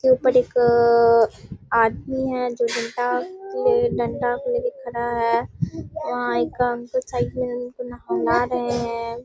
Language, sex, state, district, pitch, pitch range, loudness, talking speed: Hindi, female, Bihar, Muzaffarpur, 245 Hz, 235-265 Hz, -22 LUFS, 110 wpm